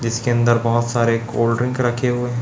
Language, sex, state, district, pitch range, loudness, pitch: Hindi, male, Chhattisgarh, Raipur, 115-120 Hz, -19 LUFS, 120 Hz